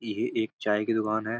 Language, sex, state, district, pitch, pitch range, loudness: Hindi, male, Uttar Pradesh, Budaun, 110 Hz, 105-115 Hz, -28 LUFS